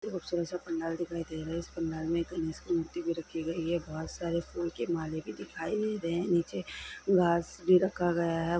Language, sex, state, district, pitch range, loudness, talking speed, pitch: Hindi, female, Bihar, Sitamarhi, 165-175 Hz, -32 LUFS, 210 wpm, 170 Hz